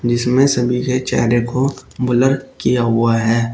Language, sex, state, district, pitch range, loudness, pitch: Hindi, male, Uttar Pradesh, Shamli, 120-130 Hz, -16 LUFS, 125 Hz